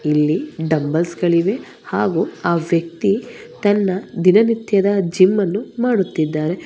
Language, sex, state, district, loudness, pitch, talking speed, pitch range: Kannada, female, Karnataka, Bangalore, -18 LUFS, 185 Hz, 90 wpm, 165-205 Hz